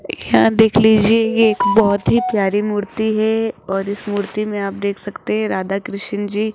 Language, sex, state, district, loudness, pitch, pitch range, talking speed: Hindi, female, Rajasthan, Jaipur, -17 LUFS, 205 Hz, 200-220 Hz, 200 wpm